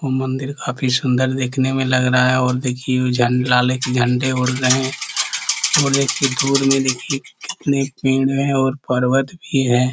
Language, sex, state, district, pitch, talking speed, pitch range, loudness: Hindi, male, Chhattisgarh, Korba, 130 Hz, 175 wpm, 125-135 Hz, -18 LUFS